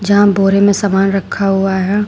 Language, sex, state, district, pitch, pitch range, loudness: Hindi, female, Uttar Pradesh, Shamli, 195 Hz, 195-200 Hz, -13 LUFS